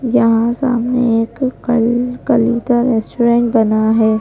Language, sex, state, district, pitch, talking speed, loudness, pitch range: Hindi, female, Madhya Pradesh, Bhopal, 235 Hz, 130 wpm, -14 LUFS, 230-245 Hz